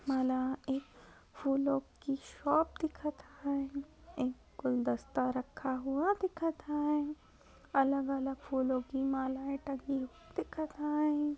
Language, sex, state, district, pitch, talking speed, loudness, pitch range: Marathi, female, Maharashtra, Sindhudurg, 275 Hz, 110 wpm, -35 LUFS, 265-295 Hz